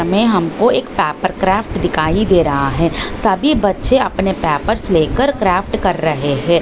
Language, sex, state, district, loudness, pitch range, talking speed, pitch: Hindi, female, Maharashtra, Nagpur, -15 LUFS, 160-205 Hz, 165 wpm, 185 Hz